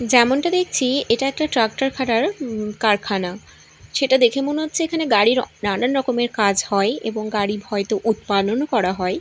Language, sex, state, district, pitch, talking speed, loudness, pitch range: Bengali, female, Odisha, Malkangiri, 230 Hz, 145 wpm, -20 LUFS, 210-270 Hz